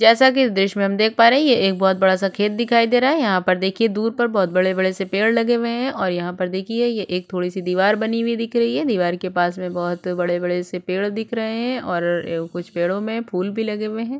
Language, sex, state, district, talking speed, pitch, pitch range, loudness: Hindi, female, Chhattisgarh, Sukma, 285 wpm, 200 Hz, 185-230 Hz, -20 LUFS